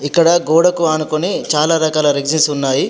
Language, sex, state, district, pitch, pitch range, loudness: Telugu, male, Telangana, Adilabad, 155 Hz, 145-165 Hz, -14 LUFS